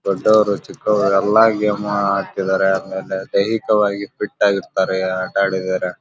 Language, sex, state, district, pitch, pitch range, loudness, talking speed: Kannada, male, Karnataka, Belgaum, 100 Hz, 95-105 Hz, -18 LUFS, 120 wpm